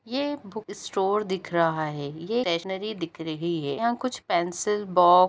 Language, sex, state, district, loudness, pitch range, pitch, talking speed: Hindi, female, Bihar, Jamui, -27 LUFS, 170-215 Hz, 190 Hz, 190 wpm